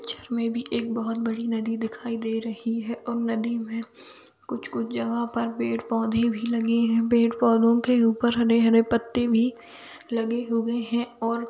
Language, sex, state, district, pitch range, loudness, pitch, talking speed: Hindi, female, Bihar, Bhagalpur, 225-235 Hz, -25 LUFS, 230 Hz, 170 wpm